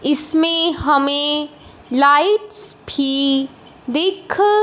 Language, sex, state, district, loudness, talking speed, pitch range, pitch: Hindi, male, Punjab, Fazilka, -13 LUFS, 65 wpm, 280-375 Hz, 295 Hz